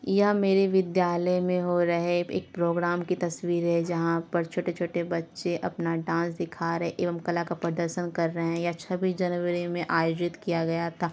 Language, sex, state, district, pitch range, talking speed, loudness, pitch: Hindi, female, Bihar, Lakhisarai, 170-175 Hz, 200 wpm, -27 LUFS, 175 Hz